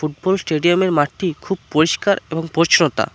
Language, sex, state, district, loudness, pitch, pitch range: Bengali, male, West Bengal, Cooch Behar, -17 LUFS, 165 Hz, 155-185 Hz